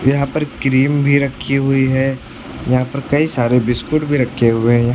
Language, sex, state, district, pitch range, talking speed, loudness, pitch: Hindi, male, Uttar Pradesh, Lucknow, 125-140 Hz, 195 wpm, -16 LUFS, 135 Hz